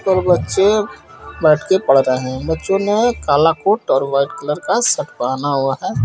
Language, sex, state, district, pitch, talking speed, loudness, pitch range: Hindi, female, Bihar, Bhagalpur, 160 Hz, 190 wpm, -16 LUFS, 135-195 Hz